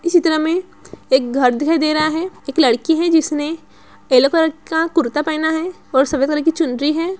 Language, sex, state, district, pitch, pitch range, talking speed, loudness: Hindi, female, Bihar, Araria, 315 Hz, 285-325 Hz, 210 wpm, -17 LUFS